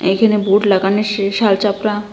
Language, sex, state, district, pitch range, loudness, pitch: Bengali, female, Assam, Hailakandi, 195-210 Hz, -15 LUFS, 205 Hz